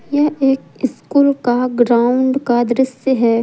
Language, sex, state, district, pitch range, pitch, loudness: Hindi, female, Jharkhand, Palamu, 240-270 Hz, 260 Hz, -15 LUFS